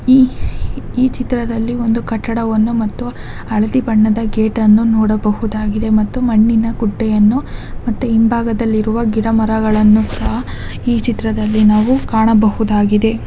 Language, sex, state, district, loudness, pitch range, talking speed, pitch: Kannada, female, Karnataka, Dakshina Kannada, -14 LUFS, 215-230 Hz, 110 wpm, 225 Hz